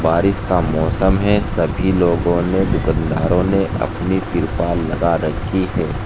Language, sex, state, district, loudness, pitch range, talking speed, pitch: Hindi, male, Uttar Pradesh, Saharanpur, -17 LUFS, 80-95 Hz, 140 wpm, 90 Hz